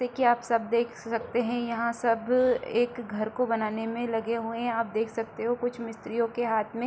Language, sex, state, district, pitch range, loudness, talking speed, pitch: Hindi, female, Bihar, Supaul, 225-240 Hz, -28 LUFS, 225 wpm, 235 Hz